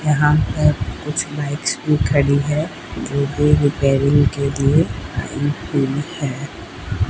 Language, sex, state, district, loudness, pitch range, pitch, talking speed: Hindi, female, Rajasthan, Bikaner, -18 LUFS, 140-150 Hz, 145 Hz, 120 wpm